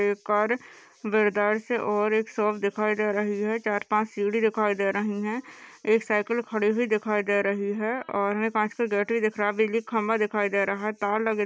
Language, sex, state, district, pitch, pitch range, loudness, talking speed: Hindi, female, Maharashtra, Sindhudurg, 215 Hz, 205-220 Hz, -26 LUFS, 200 wpm